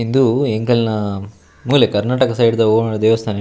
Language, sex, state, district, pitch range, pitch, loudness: Tulu, male, Karnataka, Dakshina Kannada, 105-115 Hz, 110 Hz, -16 LUFS